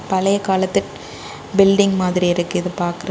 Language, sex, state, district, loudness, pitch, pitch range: Tamil, female, Tamil Nadu, Kanyakumari, -18 LUFS, 190 Hz, 180-195 Hz